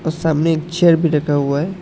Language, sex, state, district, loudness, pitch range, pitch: Hindi, male, Assam, Hailakandi, -16 LUFS, 150-170 Hz, 160 Hz